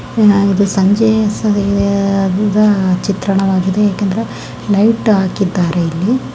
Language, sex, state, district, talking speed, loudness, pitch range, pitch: Kannada, female, Karnataka, Gulbarga, 95 wpm, -13 LUFS, 195-210 Hz, 200 Hz